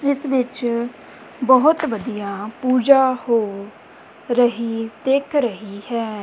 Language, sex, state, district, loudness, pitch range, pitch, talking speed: Punjabi, female, Punjab, Kapurthala, -19 LUFS, 225-265 Hz, 240 Hz, 95 wpm